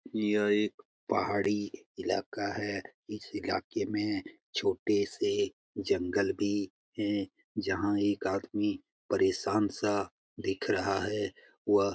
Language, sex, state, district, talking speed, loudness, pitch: Hindi, male, Bihar, Jamui, 115 wpm, -32 LUFS, 105 Hz